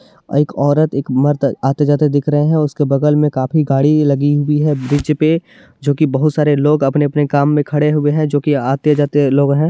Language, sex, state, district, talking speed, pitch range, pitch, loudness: Hindi, male, Bihar, Supaul, 230 wpm, 140-150 Hz, 145 Hz, -14 LUFS